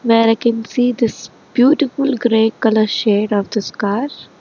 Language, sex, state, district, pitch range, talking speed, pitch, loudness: English, female, Karnataka, Bangalore, 220-245 Hz, 165 wpm, 225 Hz, -16 LUFS